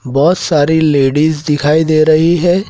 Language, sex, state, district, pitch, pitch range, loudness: Hindi, male, Madhya Pradesh, Dhar, 155 Hz, 145-160 Hz, -11 LUFS